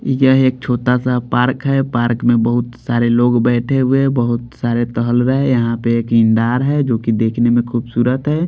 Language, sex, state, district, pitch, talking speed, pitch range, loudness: Hindi, male, Bihar, Patna, 120 Hz, 210 wpm, 120-130 Hz, -15 LUFS